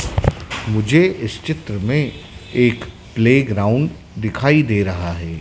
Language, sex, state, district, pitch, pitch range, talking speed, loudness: Hindi, male, Madhya Pradesh, Dhar, 110 Hz, 100-130 Hz, 120 wpm, -18 LUFS